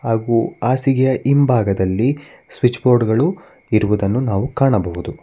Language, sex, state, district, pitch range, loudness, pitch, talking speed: Kannada, male, Karnataka, Bangalore, 105-130 Hz, -17 LUFS, 120 Hz, 105 wpm